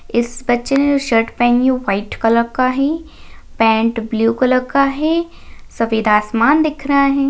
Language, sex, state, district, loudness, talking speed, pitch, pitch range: Hindi, female, Maharashtra, Pune, -16 LUFS, 170 wpm, 250 Hz, 225-280 Hz